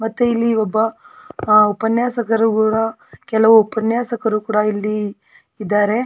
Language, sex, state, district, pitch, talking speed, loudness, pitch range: Kannada, female, Karnataka, Belgaum, 220 Hz, 110 wpm, -17 LUFS, 215-225 Hz